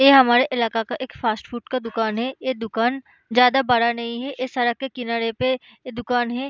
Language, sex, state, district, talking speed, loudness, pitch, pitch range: Hindi, female, Bihar, Araria, 220 wpm, -21 LUFS, 245 Hz, 235-260 Hz